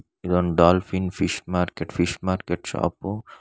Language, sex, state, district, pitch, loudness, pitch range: Kannada, male, Karnataka, Bangalore, 90 Hz, -24 LUFS, 85-95 Hz